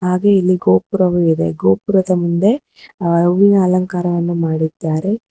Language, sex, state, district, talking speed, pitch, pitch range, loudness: Kannada, female, Karnataka, Bangalore, 100 wpm, 180 Hz, 165-190 Hz, -15 LUFS